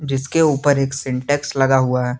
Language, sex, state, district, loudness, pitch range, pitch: Hindi, male, Jharkhand, Garhwa, -18 LUFS, 130-145 Hz, 135 Hz